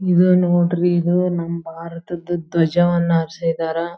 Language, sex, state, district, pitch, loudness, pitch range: Kannada, female, Karnataka, Belgaum, 175 Hz, -18 LUFS, 165-175 Hz